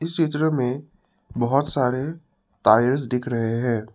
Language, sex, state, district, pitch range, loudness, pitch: Hindi, male, Assam, Sonitpur, 120-155 Hz, -22 LUFS, 130 Hz